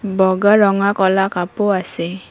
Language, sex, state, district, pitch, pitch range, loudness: Assamese, female, Assam, Kamrup Metropolitan, 195 Hz, 185-200 Hz, -16 LUFS